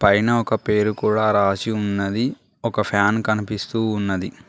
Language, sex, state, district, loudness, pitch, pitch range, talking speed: Telugu, male, Telangana, Mahabubabad, -21 LUFS, 105 Hz, 100-110 Hz, 135 wpm